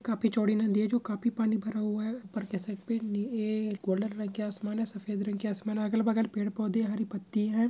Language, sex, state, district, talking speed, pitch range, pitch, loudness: Hindi, male, Jharkhand, Jamtara, 240 wpm, 210-225 Hz, 215 Hz, -31 LUFS